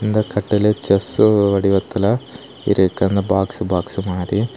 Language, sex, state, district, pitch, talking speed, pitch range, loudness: Tamil, male, Tamil Nadu, Kanyakumari, 100 Hz, 120 wpm, 95-105 Hz, -18 LUFS